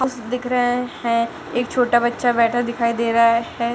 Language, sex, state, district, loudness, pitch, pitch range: Hindi, female, Chhattisgarh, Kabirdham, -19 LUFS, 240 Hz, 235-245 Hz